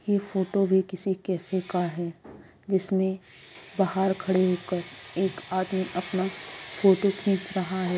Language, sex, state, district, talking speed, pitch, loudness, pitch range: Hindi, female, Bihar, Jamui, 135 wpm, 190 Hz, -27 LUFS, 180-195 Hz